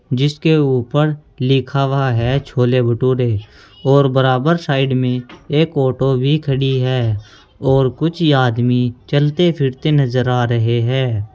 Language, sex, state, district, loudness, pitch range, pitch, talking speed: Hindi, male, Uttar Pradesh, Saharanpur, -16 LUFS, 125-145 Hz, 130 Hz, 130 wpm